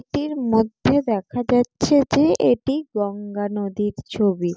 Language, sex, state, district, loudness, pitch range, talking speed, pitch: Bengali, female, West Bengal, Jalpaiguri, -21 LUFS, 205-275 Hz, 120 wpm, 225 Hz